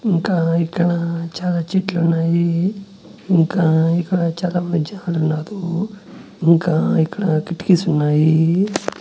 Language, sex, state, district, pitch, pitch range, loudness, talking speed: Telugu, male, Andhra Pradesh, Annamaya, 170 Hz, 165-185 Hz, -18 LUFS, 100 wpm